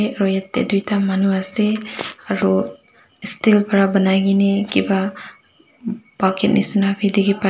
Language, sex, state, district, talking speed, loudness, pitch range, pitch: Nagamese, female, Nagaland, Dimapur, 145 wpm, -18 LUFS, 195-210 Hz, 200 Hz